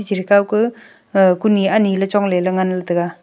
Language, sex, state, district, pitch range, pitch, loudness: Wancho, female, Arunachal Pradesh, Longding, 185-205 Hz, 195 Hz, -16 LUFS